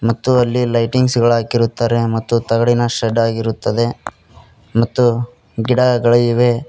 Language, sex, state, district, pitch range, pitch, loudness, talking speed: Kannada, male, Karnataka, Koppal, 115-120 Hz, 115 Hz, -15 LUFS, 100 wpm